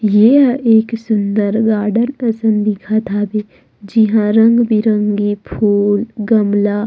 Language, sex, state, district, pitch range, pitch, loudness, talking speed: Chhattisgarhi, female, Chhattisgarh, Rajnandgaon, 205-225 Hz, 215 Hz, -14 LUFS, 85 wpm